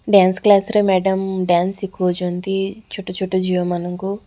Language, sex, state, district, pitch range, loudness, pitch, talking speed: Odia, female, Odisha, Khordha, 180-195 Hz, -18 LUFS, 190 Hz, 140 wpm